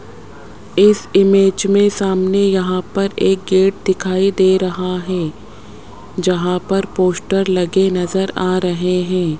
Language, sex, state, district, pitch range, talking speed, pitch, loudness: Hindi, male, Rajasthan, Jaipur, 180-195 Hz, 125 wpm, 185 Hz, -16 LUFS